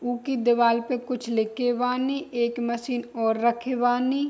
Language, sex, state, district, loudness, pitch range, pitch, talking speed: Bhojpuri, female, Bihar, East Champaran, -25 LUFS, 235-250 Hz, 245 Hz, 140 wpm